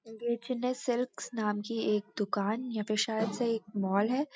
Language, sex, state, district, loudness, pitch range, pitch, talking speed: Hindi, female, Uttarakhand, Uttarkashi, -32 LUFS, 210-245 Hz, 225 Hz, 195 wpm